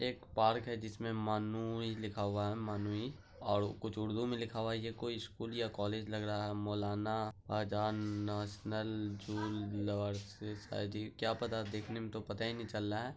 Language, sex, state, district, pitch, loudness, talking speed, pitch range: Hindi, male, Bihar, Araria, 110 Hz, -39 LUFS, 180 wpm, 105-115 Hz